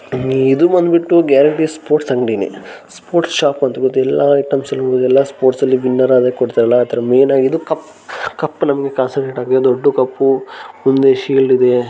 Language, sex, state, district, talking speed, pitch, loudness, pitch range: Kannada, male, Karnataka, Raichur, 125 wpm, 130 Hz, -14 LUFS, 130-140 Hz